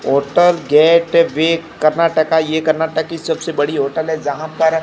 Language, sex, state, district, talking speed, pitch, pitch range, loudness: Hindi, male, Rajasthan, Barmer, 160 wpm, 160 Hz, 155-165 Hz, -15 LUFS